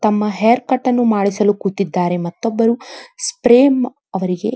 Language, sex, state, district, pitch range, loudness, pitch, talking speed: Kannada, female, Karnataka, Dharwad, 200-250 Hz, -16 LUFS, 225 Hz, 130 wpm